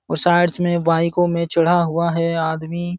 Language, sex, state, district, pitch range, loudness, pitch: Hindi, male, Uttar Pradesh, Jalaun, 165-175 Hz, -18 LUFS, 170 Hz